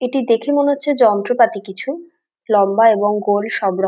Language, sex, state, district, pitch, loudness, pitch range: Bengali, female, West Bengal, Dakshin Dinajpur, 225 Hz, -16 LUFS, 205-270 Hz